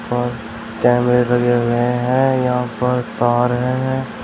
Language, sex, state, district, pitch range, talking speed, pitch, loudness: Hindi, male, Uttar Pradesh, Shamli, 120-125 Hz, 115 wpm, 120 Hz, -17 LUFS